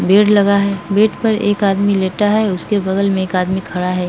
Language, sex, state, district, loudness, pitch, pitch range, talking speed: Hindi, female, Uttar Pradesh, Etah, -15 LUFS, 200 Hz, 190-205 Hz, 235 wpm